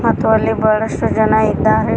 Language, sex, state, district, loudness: Kannada, female, Karnataka, Koppal, -14 LUFS